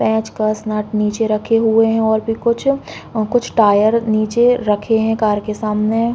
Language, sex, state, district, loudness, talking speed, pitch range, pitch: Hindi, female, Uttar Pradesh, Muzaffarnagar, -16 LUFS, 185 wpm, 215-225 Hz, 220 Hz